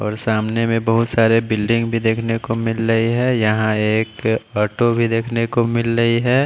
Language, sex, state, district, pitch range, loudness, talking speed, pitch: Hindi, male, Bihar, Katihar, 110-115 Hz, -18 LUFS, 195 wpm, 115 Hz